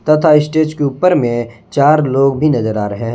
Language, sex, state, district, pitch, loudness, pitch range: Hindi, male, Jharkhand, Palamu, 140 Hz, -13 LUFS, 120-155 Hz